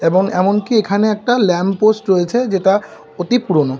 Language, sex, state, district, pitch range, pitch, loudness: Bengali, female, West Bengal, Kolkata, 185-215 Hz, 200 Hz, -15 LUFS